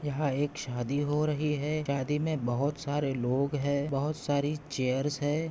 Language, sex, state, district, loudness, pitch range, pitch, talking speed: Hindi, male, Maharashtra, Pune, -31 LUFS, 140-150 Hz, 145 Hz, 175 wpm